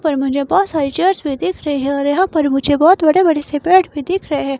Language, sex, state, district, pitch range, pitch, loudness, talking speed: Hindi, female, Himachal Pradesh, Shimla, 285-365 Hz, 305 Hz, -15 LUFS, 260 wpm